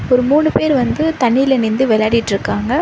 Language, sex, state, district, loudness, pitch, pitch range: Tamil, female, Tamil Nadu, Chennai, -14 LUFS, 250 Hz, 230-285 Hz